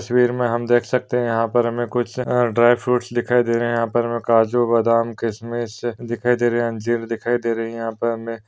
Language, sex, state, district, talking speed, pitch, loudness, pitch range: Hindi, male, Maharashtra, Pune, 225 wpm, 120 Hz, -20 LUFS, 115-120 Hz